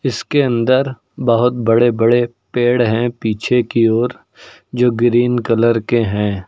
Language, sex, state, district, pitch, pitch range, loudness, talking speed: Hindi, male, Uttar Pradesh, Lucknow, 120 Hz, 115-125 Hz, -15 LUFS, 140 wpm